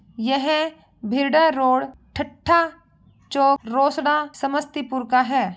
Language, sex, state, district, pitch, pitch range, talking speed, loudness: Hindi, female, Bihar, Begusarai, 275 Hz, 260-310 Hz, 95 wpm, -21 LUFS